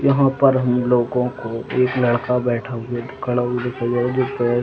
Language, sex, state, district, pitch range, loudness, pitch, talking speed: Hindi, male, Chhattisgarh, Raigarh, 120-125 Hz, -20 LUFS, 125 Hz, 195 wpm